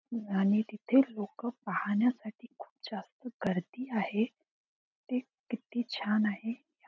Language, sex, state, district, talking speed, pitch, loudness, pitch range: Marathi, female, Maharashtra, Aurangabad, 105 wpm, 230 Hz, -33 LUFS, 205-250 Hz